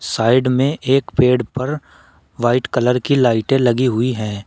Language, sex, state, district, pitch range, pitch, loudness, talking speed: Hindi, male, Uttar Pradesh, Shamli, 120-130 Hz, 125 Hz, -17 LUFS, 160 wpm